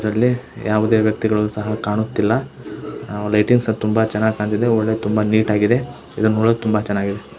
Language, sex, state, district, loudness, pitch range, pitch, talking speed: Kannada, male, Karnataka, Belgaum, -18 LUFS, 105-110 Hz, 110 Hz, 145 wpm